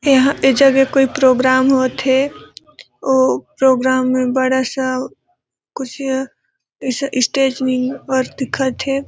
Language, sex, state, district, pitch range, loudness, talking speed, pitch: Hindi, female, Chhattisgarh, Balrampur, 260-270 Hz, -16 LUFS, 130 wpm, 265 Hz